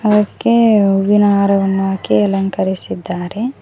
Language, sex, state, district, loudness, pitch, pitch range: Kannada, female, Karnataka, Koppal, -14 LUFS, 200 Hz, 195-210 Hz